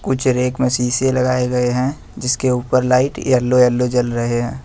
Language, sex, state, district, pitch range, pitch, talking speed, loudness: Hindi, male, Jharkhand, Ranchi, 125-130 Hz, 125 Hz, 195 wpm, -17 LUFS